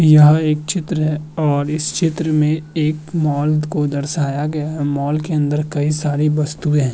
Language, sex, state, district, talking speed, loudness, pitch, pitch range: Hindi, male, Uttar Pradesh, Muzaffarnagar, 180 wpm, -18 LUFS, 150 Hz, 150-155 Hz